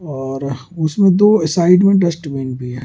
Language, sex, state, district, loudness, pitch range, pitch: Hindi, male, Delhi, New Delhi, -15 LUFS, 135-180 Hz, 160 Hz